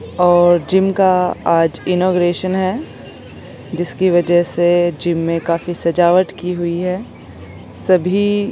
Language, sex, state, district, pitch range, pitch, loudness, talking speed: Hindi, female, Chandigarh, Chandigarh, 175-185 Hz, 175 Hz, -15 LUFS, 125 wpm